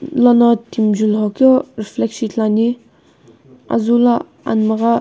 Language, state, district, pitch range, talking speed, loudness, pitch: Sumi, Nagaland, Kohima, 220-240 Hz, 85 wpm, -15 LUFS, 230 Hz